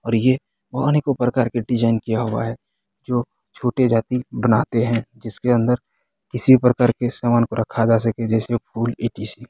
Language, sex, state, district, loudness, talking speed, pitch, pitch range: Hindi, male, Bihar, Begusarai, -20 LUFS, 185 wpm, 120 Hz, 115-125 Hz